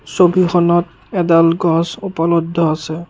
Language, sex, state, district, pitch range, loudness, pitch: Assamese, male, Assam, Kamrup Metropolitan, 165-175 Hz, -15 LUFS, 170 Hz